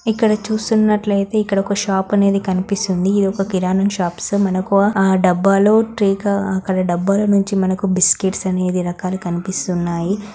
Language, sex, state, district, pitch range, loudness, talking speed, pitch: Telugu, female, Telangana, Karimnagar, 185-205 Hz, -17 LUFS, 125 wpm, 195 Hz